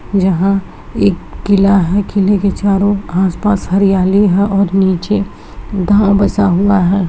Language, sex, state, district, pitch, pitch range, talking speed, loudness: Hindi, female, Rajasthan, Nagaur, 195 Hz, 190-200 Hz, 125 wpm, -13 LUFS